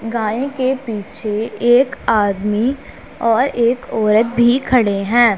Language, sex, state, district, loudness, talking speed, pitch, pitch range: Hindi, female, Punjab, Pathankot, -16 LUFS, 120 wpm, 230 Hz, 215-250 Hz